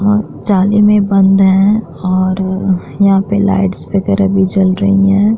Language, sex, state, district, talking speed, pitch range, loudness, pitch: Hindi, female, Bihar, Vaishali, 155 wpm, 190-200 Hz, -12 LUFS, 195 Hz